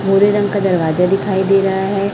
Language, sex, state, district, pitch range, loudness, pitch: Hindi, male, Chhattisgarh, Raipur, 190-200 Hz, -15 LUFS, 195 Hz